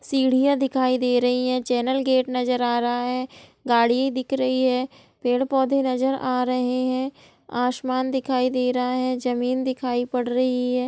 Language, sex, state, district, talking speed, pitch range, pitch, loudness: Hindi, female, Bihar, Gopalganj, 165 wpm, 250-260 Hz, 255 Hz, -23 LUFS